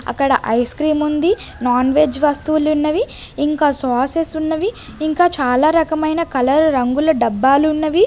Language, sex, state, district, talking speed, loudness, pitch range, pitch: Telugu, female, Andhra Pradesh, Sri Satya Sai, 135 wpm, -16 LUFS, 265-315 Hz, 300 Hz